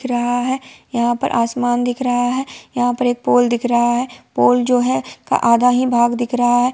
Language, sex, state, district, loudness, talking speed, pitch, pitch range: Hindi, female, Bihar, Sitamarhi, -17 LUFS, 205 wpm, 245 Hz, 240-245 Hz